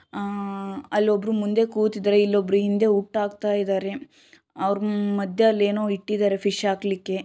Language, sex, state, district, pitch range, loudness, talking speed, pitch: Kannada, female, Karnataka, Shimoga, 200-210 Hz, -23 LUFS, 140 wpm, 205 Hz